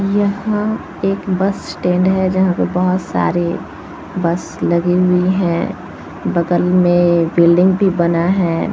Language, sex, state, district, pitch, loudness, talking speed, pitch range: Hindi, female, Bihar, Samastipur, 180 Hz, -15 LUFS, 130 wpm, 175-190 Hz